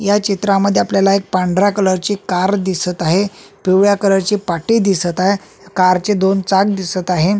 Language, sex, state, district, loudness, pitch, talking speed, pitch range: Marathi, male, Maharashtra, Solapur, -15 LUFS, 195 Hz, 180 wpm, 185-200 Hz